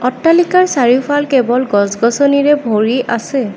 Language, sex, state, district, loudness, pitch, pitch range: Assamese, female, Assam, Kamrup Metropolitan, -12 LUFS, 255 Hz, 235-290 Hz